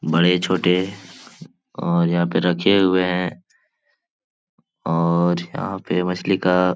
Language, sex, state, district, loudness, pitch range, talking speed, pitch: Hindi, male, Bihar, Jahanabad, -20 LUFS, 85-90 Hz, 115 wpm, 90 Hz